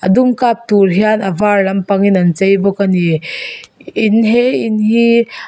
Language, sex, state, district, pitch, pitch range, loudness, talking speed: Mizo, female, Mizoram, Aizawl, 205 Hz, 195-225 Hz, -12 LUFS, 175 wpm